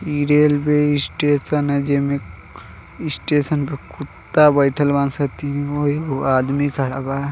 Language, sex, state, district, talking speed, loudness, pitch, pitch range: Bhojpuri, male, Uttar Pradesh, Deoria, 140 wpm, -18 LUFS, 145 Hz, 135-145 Hz